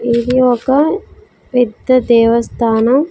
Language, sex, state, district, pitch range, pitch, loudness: Telugu, female, Andhra Pradesh, Sri Satya Sai, 235-255 Hz, 245 Hz, -13 LUFS